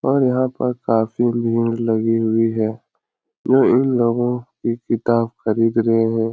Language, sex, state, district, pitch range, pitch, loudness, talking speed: Hindi, male, Uttar Pradesh, Etah, 115-120 Hz, 115 Hz, -18 LUFS, 150 wpm